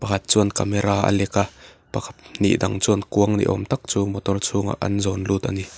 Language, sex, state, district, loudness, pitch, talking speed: Mizo, male, Mizoram, Aizawl, -22 LUFS, 100 Hz, 205 wpm